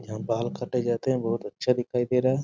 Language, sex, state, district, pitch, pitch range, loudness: Hindi, male, Bihar, Sitamarhi, 125 Hz, 115-125 Hz, -27 LUFS